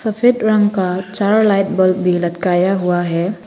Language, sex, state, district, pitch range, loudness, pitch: Hindi, female, Arunachal Pradesh, Papum Pare, 180-210 Hz, -15 LUFS, 190 Hz